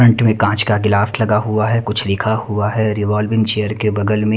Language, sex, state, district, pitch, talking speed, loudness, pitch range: Hindi, male, Punjab, Kapurthala, 105 Hz, 235 wpm, -16 LUFS, 105-110 Hz